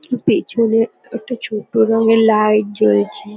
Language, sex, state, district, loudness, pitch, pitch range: Bengali, female, West Bengal, Kolkata, -15 LUFS, 225 Hz, 215-230 Hz